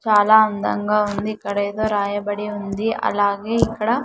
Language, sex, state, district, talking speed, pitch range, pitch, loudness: Telugu, female, Andhra Pradesh, Sri Satya Sai, 135 wpm, 205-215 Hz, 210 Hz, -20 LUFS